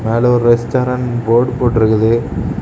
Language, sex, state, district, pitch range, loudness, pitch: Tamil, male, Tamil Nadu, Kanyakumari, 115-125 Hz, -14 LUFS, 120 Hz